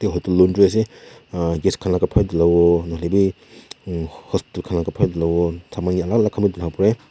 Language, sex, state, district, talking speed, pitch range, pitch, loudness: Nagamese, male, Nagaland, Kohima, 195 wpm, 85-100 Hz, 90 Hz, -19 LUFS